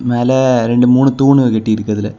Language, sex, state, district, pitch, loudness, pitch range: Tamil, male, Tamil Nadu, Kanyakumari, 125 Hz, -12 LUFS, 110-130 Hz